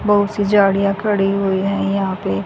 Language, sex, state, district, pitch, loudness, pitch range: Hindi, female, Haryana, Jhajjar, 200 Hz, -17 LUFS, 195-205 Hz